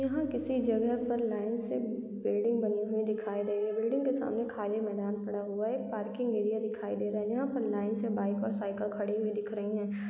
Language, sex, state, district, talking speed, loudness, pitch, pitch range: Hindi, female, Uttar Pradesh, Deoria, 245 wpm, -33 LUFS, 215 Hz, 210-235 Hz